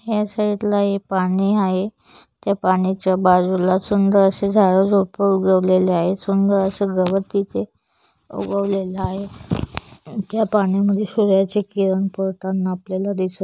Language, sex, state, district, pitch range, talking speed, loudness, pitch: Marathi, female, Maharashtra, Chandrapur, 185-200 Hz, 120 wpm, -19 LUFS, 195 Hz